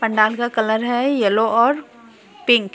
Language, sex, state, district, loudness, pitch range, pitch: Hindi, female, Bihar, Katihar, -18 LUFS, 220-240 Hz, 230 Hz